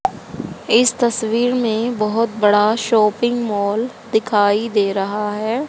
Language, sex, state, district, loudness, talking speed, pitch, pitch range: Hindi, female, Haryana, Charkhi Dadri, -17 LUFS, 115 wpm, 220 Hz, 210-235 Hz